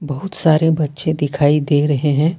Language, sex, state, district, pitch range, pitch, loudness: Hindi, male, Jharkhand, Ranchi, 145-160 Hz, 150 Hz, -16 LUFS